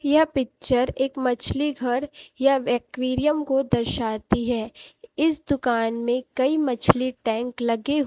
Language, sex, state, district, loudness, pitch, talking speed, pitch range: Hindi, female, Chhattisgarh, Raipur, -23 LUFS, 255 Hz, 125 wpm, 240-285 Hz